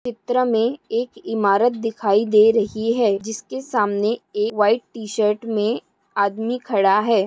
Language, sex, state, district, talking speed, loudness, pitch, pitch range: Hindi, female, Maharashtra, Aurangabad, 140 wpm, -20 LUFS, 220 Hz, 210-235 Hz